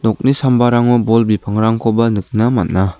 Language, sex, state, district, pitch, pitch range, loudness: Garo, male, Meghalaya, South Garo Hills, 115 Hz, 110-120 Hz, -14 LUFS